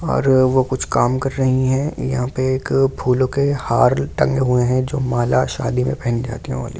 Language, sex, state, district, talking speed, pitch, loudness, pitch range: Hindi, male, Delhi, New Delhi, 220 wpm, 130 Hz, -18 LUFS, 125-135 Hz